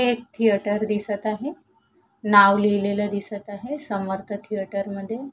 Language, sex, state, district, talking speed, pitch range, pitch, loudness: Marathi, female, Maharashtra, Sindhudurg, 125 wpm, 200-220 Hz, 205 Hz, -23 LUFS